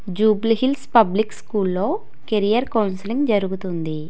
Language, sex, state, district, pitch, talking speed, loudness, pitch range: Telugu, female, Telangana, Hyderabad, 215 Hz, 90 wpm, -20 LUFS, 190-230 Hz